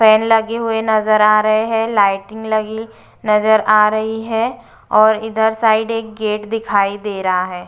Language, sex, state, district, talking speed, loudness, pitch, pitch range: Hindi, female, Uttar Pradesh, Budaun, 170 wpm, -15 LUFS, 220 Hz, 215-225 Hz